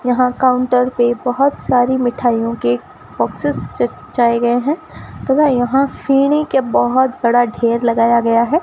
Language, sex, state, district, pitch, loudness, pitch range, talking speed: Hindi, female, Rajasthan, Bikaner, 245 Hz, -15 LUFS, 235-260 Hz, 145 wpm